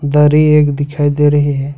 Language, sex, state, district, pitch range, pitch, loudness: Hindi, male, Jharkhand, Ranchi, 145-150 Hz, 145 Hz, -12 LUFS